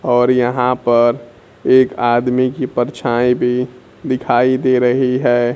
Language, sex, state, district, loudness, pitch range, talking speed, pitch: Hindi, male, Bihar, Kaimur, -15 LUFS, 120-130 Hz, 130 wpm, 125 Hz